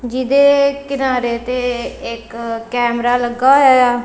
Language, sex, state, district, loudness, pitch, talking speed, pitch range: Punjabi, female, Punjab, Kapurthala, -15 LUFS, 245 Hz, 105 wpm, 240-265 Hz